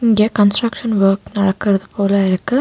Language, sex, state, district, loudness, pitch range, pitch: Tamil, female, Tamil Nadu, Nilgiris, -16 LUFS, 195-225 Hz, 205 Hz